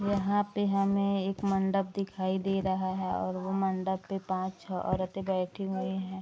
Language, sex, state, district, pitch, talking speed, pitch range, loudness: Hindi, female, Bihar, Araria, 190 Hz, 175 wpm, 185-195 Hz, -31 LUFS